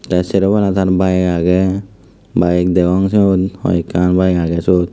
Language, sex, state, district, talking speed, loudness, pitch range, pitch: Chakma, male, Tripura, Dhalai, 145 wpm, -14 LUFS, 90-95 Hz, 90 Hz